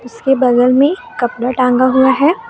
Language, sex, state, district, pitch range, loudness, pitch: Hindi, female, Jharkhand, Palamu, 250-275 Hz, -13 LUFS, 255 Hz